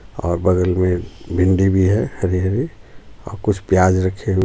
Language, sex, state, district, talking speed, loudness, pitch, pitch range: Hindi, male, Jharkhand, Ranchi, 175 wpm, -18 LUFS, 95 Hz, 90-95 Hz